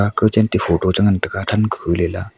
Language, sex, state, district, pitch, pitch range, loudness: Wancho, male, Arunachal Pradesh, Longding, 100 Hz, 90-105 Hz, -17 LUFS